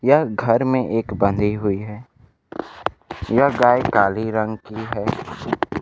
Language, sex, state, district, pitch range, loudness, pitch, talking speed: Hindi, male, Bihar, Kaimur, 105-120 Hz, -20 LUFS, 110 Hz, 135 wpm